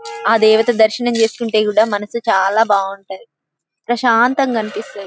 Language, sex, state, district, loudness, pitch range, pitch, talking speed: Telugu, female, Telangana, Karimnagar, -15 LUFS, 200-235 Hz, 220 Hz, 120 wpm